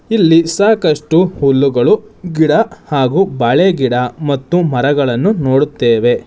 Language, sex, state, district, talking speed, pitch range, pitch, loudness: Kannada, male, Karnataka, Bangalore, 85 wpm, 130-180 Hz, 150 Hz, -13 LUFS